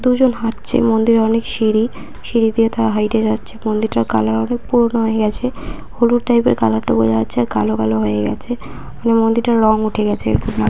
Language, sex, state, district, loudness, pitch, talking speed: Bengali, female, West Bengal, Purulia, -16 LUFS, 220 Hz, 185 wpm